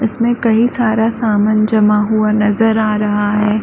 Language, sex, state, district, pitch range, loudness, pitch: Hindi, female, Chhattisgarh, Bilaspur, 210-225 Hz, -13 LUFS, 215 Hz